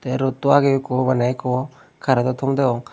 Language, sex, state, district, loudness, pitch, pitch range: Chakma, male, Tripura, Unakoti, -20 LUFS, 130 Hz, 125-135 Hz